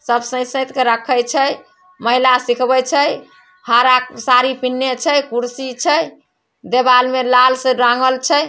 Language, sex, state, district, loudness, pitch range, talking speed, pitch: Maithili, female, Bihar, Samastipur, -15 LUFS, 250-265 Hz, 140 wpm, 255 Hz